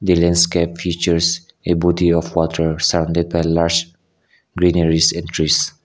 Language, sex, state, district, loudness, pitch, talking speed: English, male, Nagaland, Kohima, -17 LUFS, 85 Hz, 135 wpm